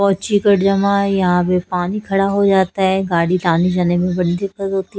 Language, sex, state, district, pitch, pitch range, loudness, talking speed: Hindi, female, Chhattisgarh, Raipur, 190 Hz, 180-200 Hz, -16 LUFS, 120 wpm